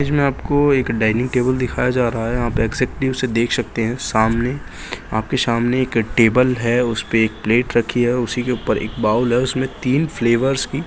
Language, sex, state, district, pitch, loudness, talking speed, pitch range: Hindi, male, Bihar, Jahanabad, 120 Hz, -18 LUFS, 210 wpm, 115-130 Hz